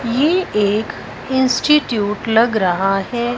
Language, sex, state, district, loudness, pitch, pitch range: Hindi, female, Punjab, Fazilka, -16 LUFS, 230 Hz, 205-260 Hz